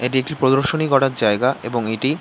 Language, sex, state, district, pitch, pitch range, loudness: Bengali, male, West Bengal, North 24 Parganas, 130 Hz, 120-140 Hz, -19 LUFS